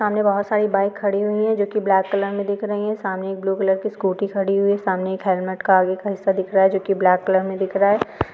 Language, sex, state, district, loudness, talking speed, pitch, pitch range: Hindi, female, Andhra Pradesh, Guntur, -20 LUFS, 295 wpm, 195 Hz, 190-205 Hz